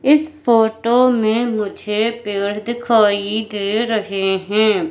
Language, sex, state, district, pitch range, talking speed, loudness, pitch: Hindi, female, Madhya Pradesh, Katni, 210-235 Hz, 110 wpm, -17 LUFS, 220 Hz